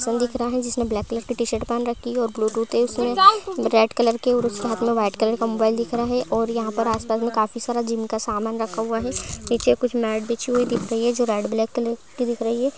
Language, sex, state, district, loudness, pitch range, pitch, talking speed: Hindi, female, Uttar Pradesh, Deoria, -22 LUFS, 225-240 Hz, 235 Hz, 275 wpm